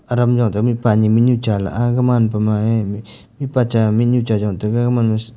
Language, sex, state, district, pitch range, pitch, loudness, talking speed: Wancho, male, Arunachal Pradesh, Longding, 105-120 Hz, 115 Hz, -16 LUFS, 200 wpm